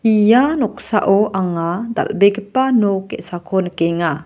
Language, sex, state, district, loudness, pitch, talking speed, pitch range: Garo, female, Meghalaya, West Garo Hills, -17 LUFS, 200 Hz, 100 wpm, 175-225 Hz